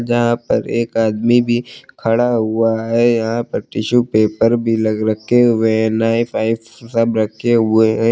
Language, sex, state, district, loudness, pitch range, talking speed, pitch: Hindi, male, Uttar Pradesh, Lucknow, -16 LUFS, 110-120 Hz, 170 wpm, 115 Hz